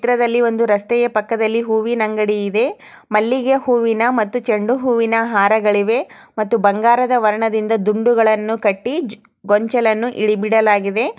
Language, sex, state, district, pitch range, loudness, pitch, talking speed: Kannada, female, Karnataka, Chamarajanagar, 215-240 Hz, -16 LUFS, 225 Hz, 120 wpm